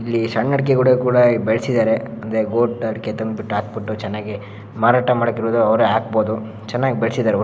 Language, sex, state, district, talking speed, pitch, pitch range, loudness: Kannada, male, Karnataka, Shimoga, 155 wpm, 115 Hz, 110-120 Hz, -18 LUFS